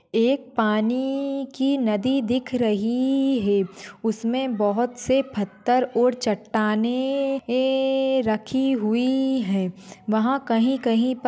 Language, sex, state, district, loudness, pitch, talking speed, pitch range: Hindi, female, Maharashtra, Pune, -23 LUFS, 245 Hz, 110 wpm, 220-265 Hz